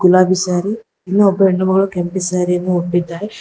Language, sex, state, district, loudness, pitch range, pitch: Kannada, female, Karnataka, Bangalore, -15 LUFS, 180-195 Hz, 185 Hz